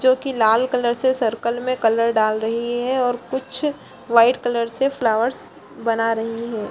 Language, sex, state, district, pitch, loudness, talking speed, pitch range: Hindi, female, Bihar, Gaya, 235 Hz, -20 LUFS, 180 wpm, 230-255 Hz